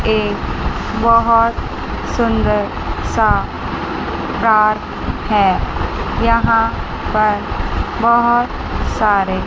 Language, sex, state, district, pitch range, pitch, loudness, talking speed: Hindi, female, Chandigarh, Chandigarh, 205-230 Hz, 220 Hz, -16 LUFS, 65 wpm